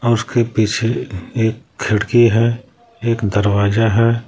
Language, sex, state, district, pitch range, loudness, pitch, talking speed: Hindi, male, Jharkhand, Palamu, 110-120 Hz, -17 LUFS, 115 Hz, 110 wpm